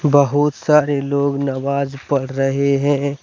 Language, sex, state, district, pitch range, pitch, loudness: Hindi, male, Jharkhand, Deoghar, 140-145 Hz, 140 Hz, -18 LUFS